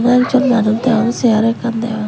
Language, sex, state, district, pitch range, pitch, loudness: Chakma, female, Tripura, West Tripura, 225-245 Hz, 235 Hz, -14 LUFS